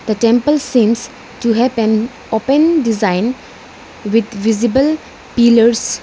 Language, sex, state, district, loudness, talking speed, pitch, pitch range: English, female, Arunachal Pradesh, Lower Dibang Valley, -14 LUFS, 100 wpm, 235 Hz, 225-250 Hz